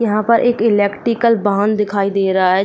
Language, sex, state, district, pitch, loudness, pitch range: Hindi, female, Uttar Pradesh, Jyotiba Phule Nagar, 210 Hz, -15 LUFS, 200-230 Hz